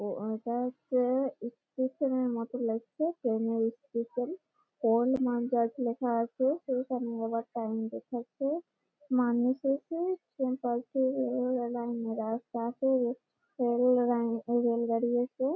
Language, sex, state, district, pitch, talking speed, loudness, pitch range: Bengali, female, West Bengal, Malda, 245 Hz, 110 wpm, -31 LUFS, 235-260 Hz